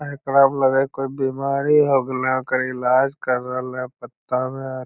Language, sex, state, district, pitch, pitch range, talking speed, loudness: Magahi, male, Bihar, Lakhisarai, 130 Hz, 130-135 Hz, 210 wpm, -20 LUFS